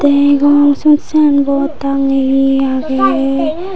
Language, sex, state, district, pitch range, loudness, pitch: Chakma, female, Tripura, Unakoti, 270-290 Hz, -12 LUFS, 285 Hz